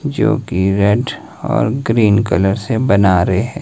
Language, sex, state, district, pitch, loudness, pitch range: Hindi, male, Himachal Pradesh, Shimla, 105 Hz, -15 LUFS, 95-115 Hz